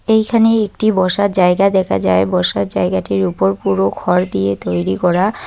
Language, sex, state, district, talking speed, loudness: Bengali, female, West Bengal, Cooch Behar, 155 wpm, -15 LUFS